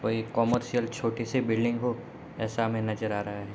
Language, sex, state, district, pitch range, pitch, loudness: Hindi, male, Bihar, Gopalganj, 110-120 Hz, 115 Hz, -29 LUFS